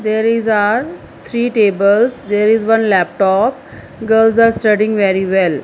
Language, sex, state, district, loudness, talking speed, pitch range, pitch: English, female, Punjab, Fazilka, -13 LUFS, 150 wpm, 200-225 Hz, 215 Hz